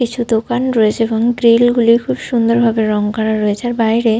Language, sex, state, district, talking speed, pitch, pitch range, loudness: Bengali, female, Jharkhand, Sahebganj, 215 wpm, 230 Hz, 220-240 Hz, -14 LUFS